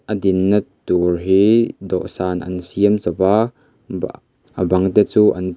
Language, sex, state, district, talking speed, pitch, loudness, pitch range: Mizo, male, Mizoram, Aizawl, 160 wpm, 95 Hz, -17 LUFS, 90-105 Hz